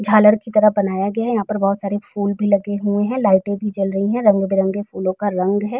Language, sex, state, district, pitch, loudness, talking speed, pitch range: Hindi, female, Uttar Pradesh, Jalaun, 205 Hz, -18 LUFS, 260 wpm, 195-210 Hz